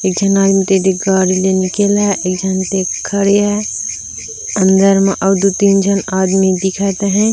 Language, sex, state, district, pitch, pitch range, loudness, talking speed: Chhattisgarhi, female, Chhattisgarh, Raigarh, 195 Hz, 190-200 Hz, -13 LUFS, 130 wpm